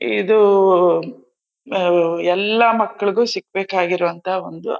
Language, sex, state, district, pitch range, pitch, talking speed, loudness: Kannada, female, Karnataka, Chamarajanagar, 180-205 Hz, 190 Hz, 65 wpm, -17 LUFS